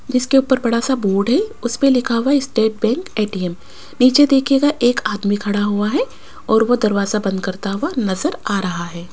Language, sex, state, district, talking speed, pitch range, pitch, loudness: Hindi, female, Rajasthan, Jaipur, 190 wpm, 205-265 Hz, 230 Hz, -17 LUFS